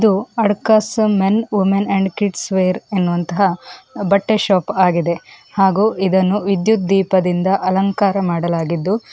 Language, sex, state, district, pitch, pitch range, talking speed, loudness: Kannada, female, Karnataka, Dakshina Kannada, 195 Hz, 185-205 Hz, 105 wpm, -16 LUFS